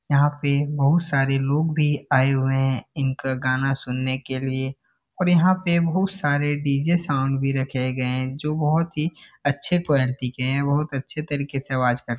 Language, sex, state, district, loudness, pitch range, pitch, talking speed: Hindi, male, Bihar, Jahanabad, -23 LUFS, 130-150 Hz, 140 Hz, 185 wpm